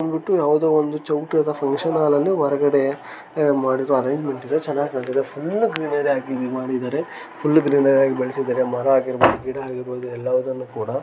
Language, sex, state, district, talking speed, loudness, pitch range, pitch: Kannada, male, Karnataka, Gulbarga, 160 wpm, -21 LUFS, 130-150 Hz, 140 Hz